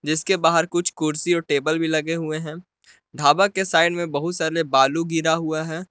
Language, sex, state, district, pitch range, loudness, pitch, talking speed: Hindi, male, Jharkhand, Palamu, 155-170 Hz, -21 LUFS, 160 Hz, 205 wpm